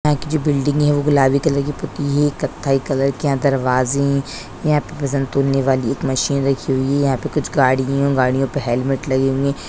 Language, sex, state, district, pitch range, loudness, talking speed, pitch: Hindi, female, Bihar, Sitamarhi, 135-145 Hz, -18 LUFS, 240 wpm, 140 Hz